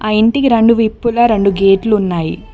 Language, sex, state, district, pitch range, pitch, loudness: Telugu, female, Telangana, Mahabubabad, 195-230 Hz, 215 Hz, -12 LUFS